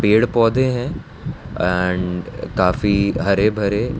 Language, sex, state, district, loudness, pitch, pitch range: Hindi, male, Gujarat, Valsad, -18 LUFS, 100 Hz, 90-110 Hz